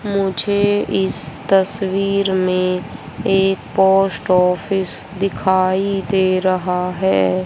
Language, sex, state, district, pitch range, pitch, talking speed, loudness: Hindi, male, Haryana, Rohtak, 185-195 Hz, 190 Hz, 90 wpm, -16 LUFS